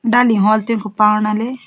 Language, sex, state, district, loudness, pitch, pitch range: Garhwali, female, Uttarakhand, Uttarkashi, -15 LUFS, 215 Hz, 215-230 Hz